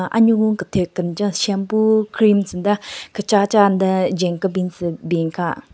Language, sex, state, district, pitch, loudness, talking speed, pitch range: Rengma, female, Nagaland, Kohima, 195 Hz, -18 LUFS, 135 wpm, 180-210 Hz